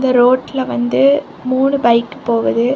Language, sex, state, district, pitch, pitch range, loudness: Tamil, female, Tamil Nadu, Kanyakumari, 255 Hz, 235-265 Hz, -15 LUFS